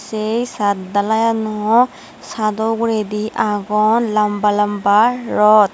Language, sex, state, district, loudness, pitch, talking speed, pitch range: Chakma, female, Tripura, West Tripura, -16 LUFS, 215 Hz, 95 wpm, 210-225 Hz